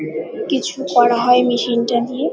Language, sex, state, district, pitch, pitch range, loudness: Bengali, female, West Bengal, Kolkata, 245 Hz, 240-280 Hz, -17 LUFS